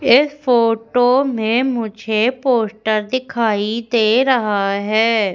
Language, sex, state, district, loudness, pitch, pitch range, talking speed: Hindi, female, Madhya Pradesh, Umaria, -17 LUFS, 230 Hz, 215-250 Hz, 100 wpm